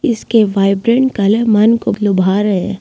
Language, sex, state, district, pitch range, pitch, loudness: Hindi, female, Delhi, New Delhi, 200-230 Hz, 210 Hz, -13 LUFS